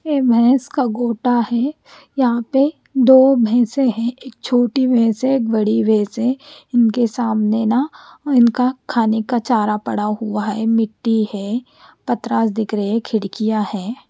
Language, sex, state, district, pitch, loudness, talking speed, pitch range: Hindi, female, Chandigarh, Chandigarh, 235 Hz, -17 LUFS, 145 wpm, 220-255 Hz